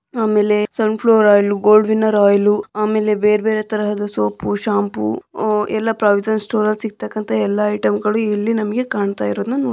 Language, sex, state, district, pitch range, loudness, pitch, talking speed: Kannada, female, Karnataka, Dharwad, 205-220 Hz, -17 LUFS, 210 Hz, 150 wpm